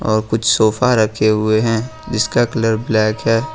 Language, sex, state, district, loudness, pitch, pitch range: Hindi, male, Jharkhand, Ranchi, -16 LUFS, 110 Hz, 110-115 Hz